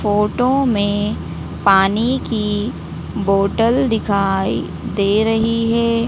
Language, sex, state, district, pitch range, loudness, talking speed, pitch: Hindi, female, Madhya Pradesh, Dhar, 200-230 Hz, -17 LUFS, 90 wpm, 215 Hz